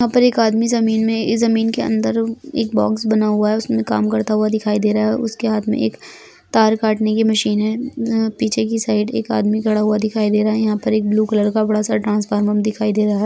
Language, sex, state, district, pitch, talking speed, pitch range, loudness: Bhojpuri, female, Bihar, Saran, 215 Hz, 245 wpm, 210-225 Hz, -17 LUFS